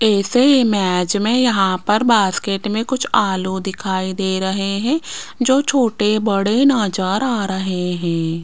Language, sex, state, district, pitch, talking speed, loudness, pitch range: Hindi, female, Rajasthan, Jaipur, 200 Hz, 135 wpm, -17 LUFS, 190-235 Hz